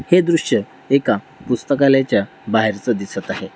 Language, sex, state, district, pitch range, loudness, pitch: Marathi, male, Maharashtra, Dhule, 110-145 Hz, -18 LUFS, 135 Hz